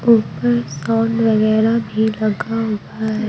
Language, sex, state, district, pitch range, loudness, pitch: Hindi, female, Bihar, Patna, 210-225 Hz, -18 LUFS, 220 Hz